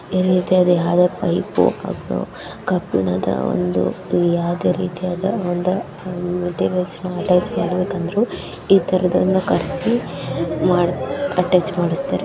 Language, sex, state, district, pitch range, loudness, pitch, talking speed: Kannada, female, Karnataka, Dakshina Kannada, 175-185 Hz, -19 LUFS, 180 Hz, 85 wpm